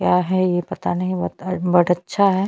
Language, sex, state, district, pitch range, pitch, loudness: Hindi, female, Chhattisgarh, Bastar, 150-185 Hz, 180 Hz, -20 LUFS